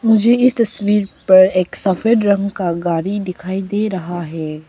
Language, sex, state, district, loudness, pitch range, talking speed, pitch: Hindi, female, Arunachal Pradesh, Papum Pare, -16 LUFS, 175-210 Hz, 165 wpm, 195 Hz